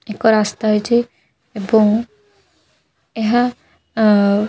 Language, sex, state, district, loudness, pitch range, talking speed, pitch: Odia, female, Odisha, Khordha, -16 LUFS, 210-240 Hz, 80 wpm, 220 Hz